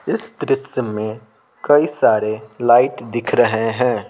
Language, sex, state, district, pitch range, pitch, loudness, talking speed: Hindi, male, Bihar, Patna, 110-130 Hz, 120 Hz, -18 LUFS, 130 wpm